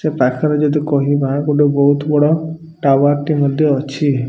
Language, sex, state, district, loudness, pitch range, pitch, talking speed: Odia, male, Odisha, Malkangiri, -15 LUFS, 140-150 Hz, 145 Hz, 155 wpm